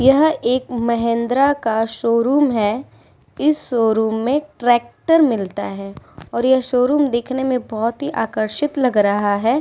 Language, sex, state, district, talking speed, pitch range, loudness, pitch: Hindi, female, Uttar Pradesh, Muzaffarnagar, 145 wpm, 225-275 Hz, -18 LUFS, 240 Hz